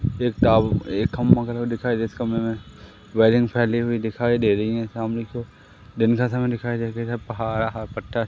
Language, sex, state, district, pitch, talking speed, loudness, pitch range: Hindi, male, Madhya Pradesh, Umaria, 115 Hz, 145 wpm, -22 LUFS, 110-120 Hz